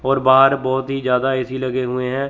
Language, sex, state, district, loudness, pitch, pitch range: Hindi, male, Chandigarh, Chandigarh, -17 LUFS, 130 Hz, 130-135 Hz